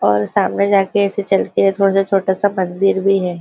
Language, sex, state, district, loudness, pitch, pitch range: Hindi, female, Maharashtra, Nagpur, -16 LUFS, 195 Hz, 190-200 Hz